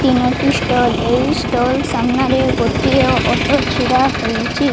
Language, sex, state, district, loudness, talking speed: Odia, female, Odisha, Malkangiri, -15 LUFS, 125 wpm